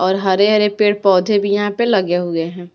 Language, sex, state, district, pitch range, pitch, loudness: Hindi, female, Maharashtra, Mumbai Suburban, 180-205 Hz, 195 Hz, -15 LUFS